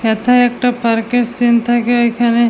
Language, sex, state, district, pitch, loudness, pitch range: Bengali, female, West Bengal, Jalpaiguri, 240 Hz, -14 LUFS, 235-245 Hz